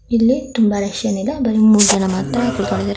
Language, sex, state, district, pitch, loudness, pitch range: Kannada, female, Karnataka, Dharwad, 215 Hz, -16 LUFS, 195-240 Hz